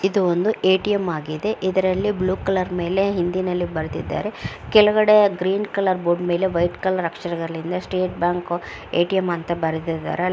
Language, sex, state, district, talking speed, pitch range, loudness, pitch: Kannada, female, Karnataka, Mysore, 140 wpm, 175-190 Hz, -21 LUFS, 185 Hz